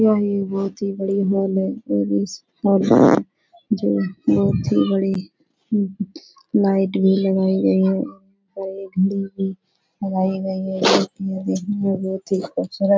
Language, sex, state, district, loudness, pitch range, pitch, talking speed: Hindi, female, Uttar Pradesh, Etah, -20 LUFS, 190-200 Hz, 195 Hz, 105 wpm